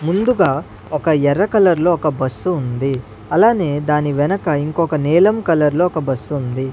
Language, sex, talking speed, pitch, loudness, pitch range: Telugu, male, 150 wpm, 155 Hz, -16 LUFS, 145-175 Hz